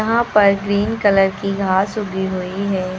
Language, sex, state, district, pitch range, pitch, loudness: Hindi, female, Uttar Pradesh, Lucknow, 190-205 Hz, 200 Hz, -17 LUFS